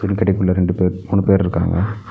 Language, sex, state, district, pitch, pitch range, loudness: Tamil, male, Tamil Nadu, Nilgiris, 95 Hz, 90-100 Hz, -17 LUFS